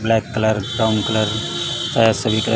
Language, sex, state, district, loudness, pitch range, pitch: Hindi, male, Chhattisgarh, Raipur, -18 LUFS, 110-115 Hz, 110 Hz